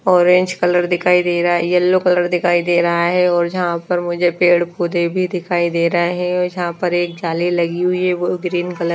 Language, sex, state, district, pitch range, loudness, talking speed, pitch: Hindi, female, Odisha, Nuapada, 175-180 Hz, -16 LUFS, 230 wpm, 175 Hz